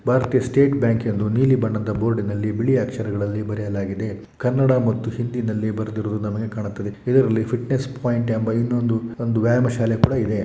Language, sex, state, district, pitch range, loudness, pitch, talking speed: Kannada, male, Karnataka, Shimoga, 105-125 Hz, -21 LUFS, 115 Hz, 150 wpm